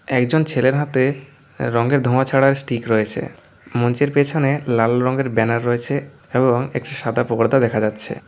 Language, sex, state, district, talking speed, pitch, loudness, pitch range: Bengali, male, West Bengal, Alipurduar, 145 wpm, 130 Hz, -19 LUFS, 120-140 Hz